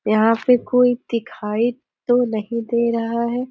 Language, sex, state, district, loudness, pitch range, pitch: Hindi, female, Uttar Pradesh, Deoria, -19 LUFS, 225-245 Hz, 235 Hz